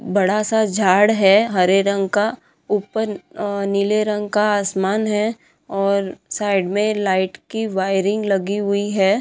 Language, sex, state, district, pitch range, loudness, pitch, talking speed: Hindi, female, Bihar, Madhepura, 195-210 Hz, -19 LUFS, 205 Hz, 145 wpm